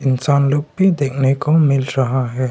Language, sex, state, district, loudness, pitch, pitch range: Hindi, male, Arunachal Pradesh, Longding, -16 LUFS, 140 Hz, 130-145 Hz